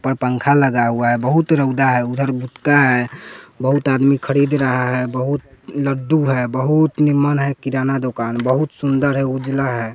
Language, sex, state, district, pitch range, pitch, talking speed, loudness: Hindi, male, Bihar, West Champaran, 125-140 Hz, 135 Hz, 175 wpm, -17 LUFS